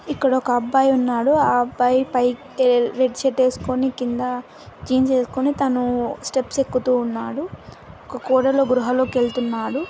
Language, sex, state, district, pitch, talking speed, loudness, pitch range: Telugu, female, Andhra Pradesh, Anantapur, 255 Hz, 125 wpm, -20 LUFS, 245-265 Hz